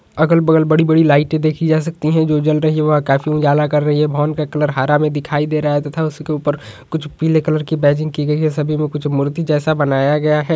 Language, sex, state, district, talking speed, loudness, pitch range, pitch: Hindi, male, Bihar, Jahanabad, 250 wpm, -16 LUFS, 145-155 Hz, 150 Hz